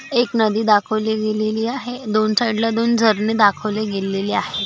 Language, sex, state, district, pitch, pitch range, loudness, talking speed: Marathi, female, Maharashtra, Aurangabad, 215 Hz, 215-230 Hz, -18 LUFS, 155 wpm